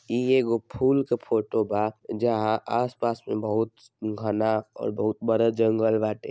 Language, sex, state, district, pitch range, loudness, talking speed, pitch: Bhojpuri, male, Bihar, Saran, 110-120 Hz, -26 LUFS, 160 wpm, 110 Hz